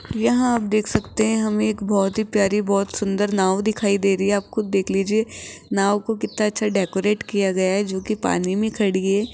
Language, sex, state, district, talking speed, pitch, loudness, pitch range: Hindi, female, Rajasthan, Jaipur, 210 wpm, 205 Hz, -21 LUFS, 195-215 Hz